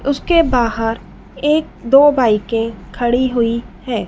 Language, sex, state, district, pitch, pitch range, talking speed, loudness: Hindi, female, Madhya Pradesh, Dhar, 235 Hz, 225-275 Hz, 115 wpm, -16 LUFS